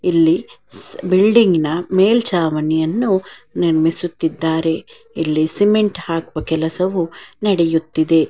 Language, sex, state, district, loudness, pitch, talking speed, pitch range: Kannada, female, Karnataka, Dakshina Kannada, -17 LUFS, 170 Hz, 70 wpm, 160-205 Hz